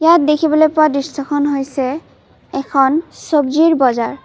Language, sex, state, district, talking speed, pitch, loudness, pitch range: Assamese, female, Assam, Kamrup Metropolitan, 115 wpm, 290 Hz, -15 LUFS, 275-315 Hz